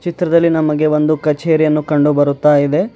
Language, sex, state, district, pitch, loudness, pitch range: Kannada, male, Karnataka, Bidar, 155 Hz, -14 LUFS, 150-165 Hz